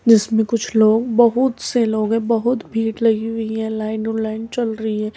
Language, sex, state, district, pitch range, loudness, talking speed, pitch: Hindi, female, Uttar Pradesh, Muzaffarnagar, 220-230 Hz, -18 LUFS, 200 wpm, 225 Hz